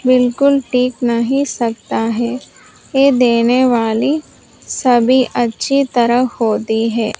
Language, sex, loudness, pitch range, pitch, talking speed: Hindi, female, -15 LUFS, 235-260 Hz, 245 Hz, 110 wpm